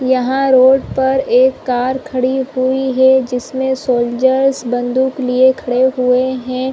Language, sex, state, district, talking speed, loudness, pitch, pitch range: Hindi, female, Chhattisgarh, Rajnandgaon, 135 wpm, -14 LUFS, 260 Hz, 255-265 Hz